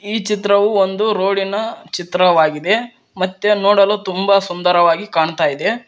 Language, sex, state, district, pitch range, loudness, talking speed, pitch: Kannada, male, Karnataka, Koppal, 180-210 Hz, -16 LUFS, 125 wpm, 195 Hz